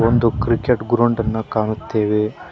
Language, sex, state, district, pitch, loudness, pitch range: Kannada, male, Karnataka, Koppal, 115 Hz, -19 LUFS, 110-120 Hz